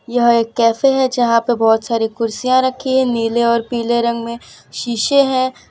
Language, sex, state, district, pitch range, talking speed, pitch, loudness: Hindi, female, Gujarat, Valsad, 230-255 Hz, 190 wpm, 235 Hz, -16 LUFS